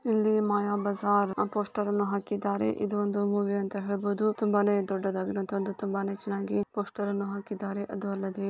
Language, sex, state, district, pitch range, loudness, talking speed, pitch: Kannada, female, Karnataka, Chamarajanagar, 200-205 Hz, -29 LUFS, 160 wpm, 205 Hz